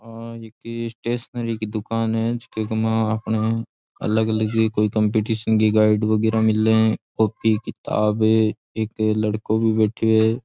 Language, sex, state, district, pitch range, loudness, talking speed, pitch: Rajasthani, male, Rajasthan, Churu, 110-115 Hz, -21 LUFS, 150 wpm, 110 Hz